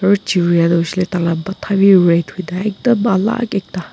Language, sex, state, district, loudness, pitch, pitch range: Nagamese, female, Nagaland, Kohima, -15 LUFS, 185 Hz, 175-200 Hz